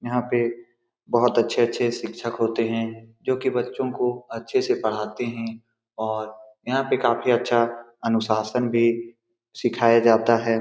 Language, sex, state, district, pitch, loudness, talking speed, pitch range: Hindi, male, Bihar, Saran, 115 Hz, -23 LUFS, 140 wpm, 115-120 Hz